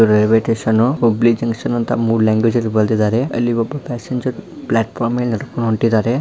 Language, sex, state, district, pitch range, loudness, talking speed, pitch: Kannada, male, Karnataka, Dharwad, 110-120 Hz, -17 LUFS, 175 wpm, 115 Hz